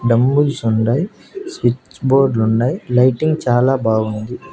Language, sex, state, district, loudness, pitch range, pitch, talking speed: Telugu, male, Andhra Pradesh, Annamaya, -16 LUFS, 115-135 Hz, 125 Hz, 90 wpm